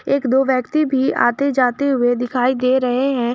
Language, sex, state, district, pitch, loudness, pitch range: Hindi, female, Jharkhand, Garhwa, 260 Hz, -17 LUFS, 250-275 Hz